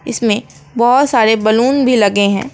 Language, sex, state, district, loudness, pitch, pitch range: Hindi, female, West Bengal, Alipurduar, -12 LUFS, 235 Hz, 215-250 Hz